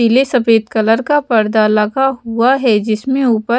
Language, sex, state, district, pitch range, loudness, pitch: Hindi, female, Bihar, West Champaran, 220-260 Hz, -13 LUFS, 230 Hz